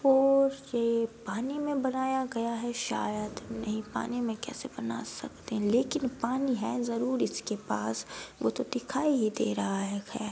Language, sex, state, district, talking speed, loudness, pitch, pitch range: Hindi, female, Bihar, Gopalganj, 165 wpm, -31 LUFS, 235 Hz, 215-265 Hz